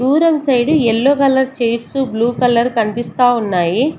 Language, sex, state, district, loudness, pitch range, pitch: Telugu, female, Andhra Pradesh, Sri Satya Sai, -15 LUFS, 235-270 Hz, 245 Hz